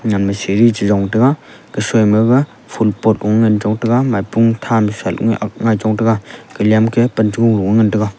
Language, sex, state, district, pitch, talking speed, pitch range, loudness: Wancho, male, Arunachal Pradesh, Longding, 110 Hz, 175 wpm, 105-115 Hz, -14 LUFS